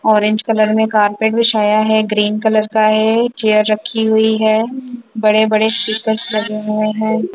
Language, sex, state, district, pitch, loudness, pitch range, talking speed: Hindi, female, Punjab, Kapurthala, 220 Hz, -14 LUFS, 215-220 Hz, 165 wpm